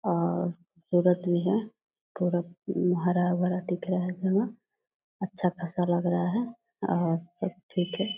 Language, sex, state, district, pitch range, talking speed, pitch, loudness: Hindi, female, Bihar, Purnia, 175-190 Hz, 145 wpm, 180 Hz, -29 LUFS